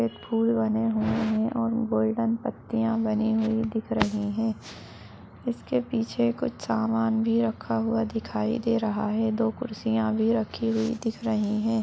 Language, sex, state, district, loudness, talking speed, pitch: Hindi, female, Uttar Pradesh, Budaun, -26 LUFS, 160 wpm, 220 Hz